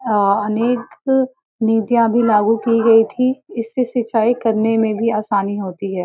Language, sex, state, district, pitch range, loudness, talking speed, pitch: Hindi, female, Uttar Pradesh, Varanasi, 215-240 Hz, -17 LUFS, 160 wpm, 225 Hz